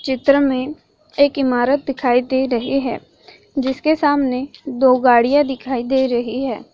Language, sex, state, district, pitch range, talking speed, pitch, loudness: Hindi, female, Maharashtra, Chandrapur, 250-280 Hz, 140 wpm, 265 Hz, -17 LUFS